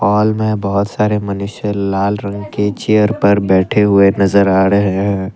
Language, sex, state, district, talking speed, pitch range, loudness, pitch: Hindi, male, Assam, Kamrup Metropolitan, 180 wpm, 100-105 Hz, -14 LUFS, 100 Hz